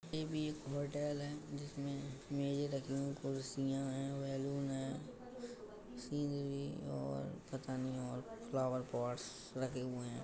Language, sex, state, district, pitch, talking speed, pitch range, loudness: Hindi, female, Uttar Pradesh, Etah, 140 Hz, 125 wpm, 130-145 Hz, -42 LUFS